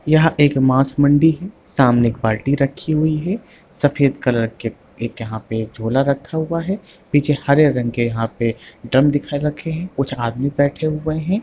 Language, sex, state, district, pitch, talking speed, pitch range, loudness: Hindi, male, Bihar, Sitamarhi, 140 Hz, 195 wpm, 120-155 Hz, -18 LUFS